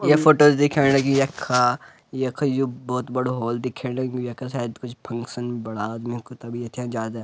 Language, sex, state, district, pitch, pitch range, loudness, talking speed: Garhwali, male, Uttarakhand, Uttarkashi, 125 Hz, 120-135 Hz, -23 LUFS, 190 wpm